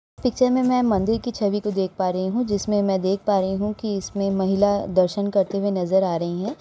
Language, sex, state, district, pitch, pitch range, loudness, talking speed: Hindi, female, Uttar Pradesh, Jalaun, 200 Hz, 190-210 Hz, -22 LUFS, 245 wpm